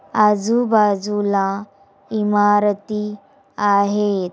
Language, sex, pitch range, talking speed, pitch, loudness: Marathi, female, 200-210 Hz, 70 wpm, 205 Hz, -18 LUFS